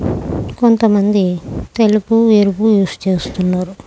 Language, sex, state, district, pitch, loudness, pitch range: Telugu, female, Andhra Pradesh, Krishna, 200 Hz, -14 LUFS, 185-220 Hz